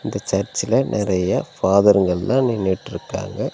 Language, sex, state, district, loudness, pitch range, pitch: Tamil, male, Tamil Nadu, Nilgiris, -19 LUFS, 95-105 Hz, 100 Hz